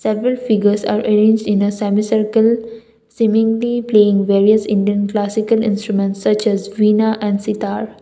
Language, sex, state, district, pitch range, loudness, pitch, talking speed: English, female, Assam, Kamrup Metropolitan, 205-225 Hz, -15 LUFS, 215 Hz, 140 wpm